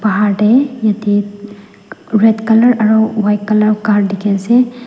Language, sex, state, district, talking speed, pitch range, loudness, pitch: Nagamese, female, Nagaland, Dimapur, 135 wpm, 205-225 Hz, -12 LUFS, 215 Hz